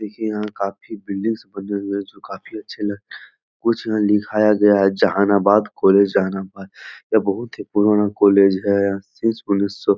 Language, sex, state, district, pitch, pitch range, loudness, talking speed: Hindi, male, Bihar, Jahanabad, 100 Hz, 100-105 Hz, -19 LUFS, 150 wpm